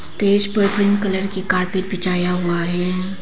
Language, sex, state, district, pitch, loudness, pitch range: Hindi, female, Arunachal Pradesh, Papum Pare, 190 Hz, -18 LUFS, 180-200 Hz